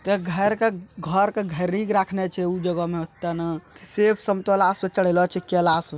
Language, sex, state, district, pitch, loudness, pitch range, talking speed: Hindi, male, Bihar, Araria, 185 Hz, -23 LUFS, 175-200 Hz, 80 wpm